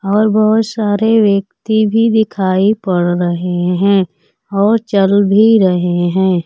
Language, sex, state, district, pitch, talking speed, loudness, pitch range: Hindi, female, Bihar, Kaimur, 200 Hz, 130 wpm, -13 LUFS, 185-215 Hz